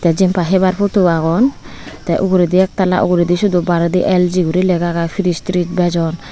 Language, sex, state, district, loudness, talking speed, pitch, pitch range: Chakma, female, Tripura, Unakoti, -14 LUFS, 150 wpm, 180 Hz, 175-185 Hz